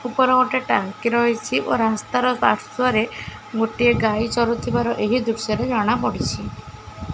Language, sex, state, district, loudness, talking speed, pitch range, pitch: Odia, female, Odisha, Khordha, -20 LUFS, 135 wpm, 220-250 Hz, 235 Hz